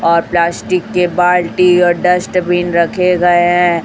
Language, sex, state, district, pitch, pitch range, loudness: Hindi, female, Chhattisgarh, Raipur, 175 Hz, 175-180 Hz, -12 LUFS